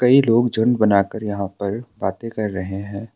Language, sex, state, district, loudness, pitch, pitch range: Hindi, male, Assam, Sonitpur, -20 LUFS, 105 Hz, 100-115 Hz